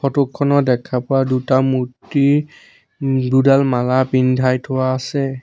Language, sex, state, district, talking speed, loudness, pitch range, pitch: Assamese, male, Assam, Sonitpur, 130 wpm, -17 LUFS, 130-140 Hz, 130 Hz